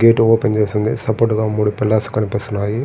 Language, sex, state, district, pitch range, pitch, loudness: Telugu, male, Andhra Pradesh, Srikakulam, 105-115 Hz, 110 Hz, -17 LUFS